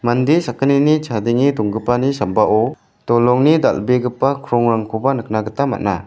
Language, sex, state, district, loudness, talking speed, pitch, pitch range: Garo, male, Meghalaya, West Garo Hills, -16 LUFS, 110 wpm, 120 Hz, 110-140 Hz